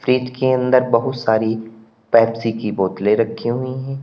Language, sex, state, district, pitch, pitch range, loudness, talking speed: Hindi, male, Uttar Pradesh, Lalitpur, 115 Hz, 110-130 Hz, -18 LUFS, 165 wpm